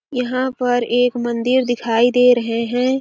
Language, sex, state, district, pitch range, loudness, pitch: Hindi, female, Chhattisgarh, Sarguja, 240-250 Hz, -17 LUFS, 245 Hz